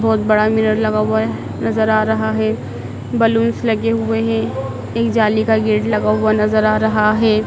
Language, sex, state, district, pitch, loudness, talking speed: Hindi, female, Madhya Pradesh, Dhar, 215 Hz, -16 LUFS, 185 wpm